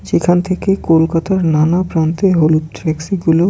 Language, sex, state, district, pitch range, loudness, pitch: Bengali, male, West Bengal, Kolkata, 160-185 Hz, -14 LUFS, 165 Hz